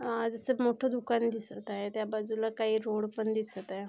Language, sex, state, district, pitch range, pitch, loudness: Marathi, female, Maharashtra, Aurangabad, 215-230 Hz, 220 Hz, -33 LUFS